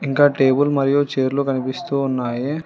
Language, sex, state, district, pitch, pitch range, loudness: Telugu, female, Telangana, Hyderabad, 140 Hz, 130-145 Hz, -19 LUFS